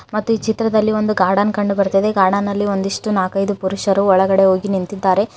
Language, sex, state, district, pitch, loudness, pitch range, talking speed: Kannada, female, Karnataka, Koppal, 200 Hz, -16 LUFS, 195-210 Hz, 155 wpm